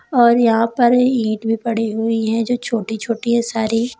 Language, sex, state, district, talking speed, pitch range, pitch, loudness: Hindi, female, Uttar Pradesh, Lalitpur, 195 wpm, 225-240 Hz, 230 Hz, -17 LUFS